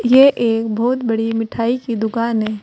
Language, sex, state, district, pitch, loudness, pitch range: Hindi, female, Uttar Pradesh, Saharanpur, 230 Hz, -17 LUFS, 225-245 Hz